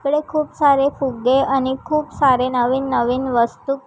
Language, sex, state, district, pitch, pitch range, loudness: Marathi, female, Maharashtra, Chandrapur, 270 Hz, 255-285 Hz, -18 LUFS